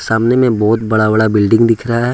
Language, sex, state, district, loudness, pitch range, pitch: Hindi, male, Jharkhand, Ranchi, -12 LUFS, 110-115 Hz, 110 Hz